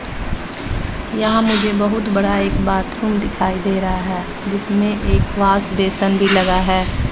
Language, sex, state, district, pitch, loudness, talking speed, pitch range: Hindi, female, Bihar, West Champaran, 200 Hz, -17 LUFS, 145 wpm, 190-210 Hz